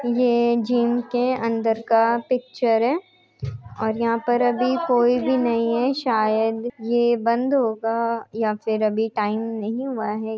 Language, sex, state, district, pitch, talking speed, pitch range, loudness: Hindi, female, Bihar, Muzaffarpur, 235 Hz, 150 wpm, 225-245 Hz, -21 LUFS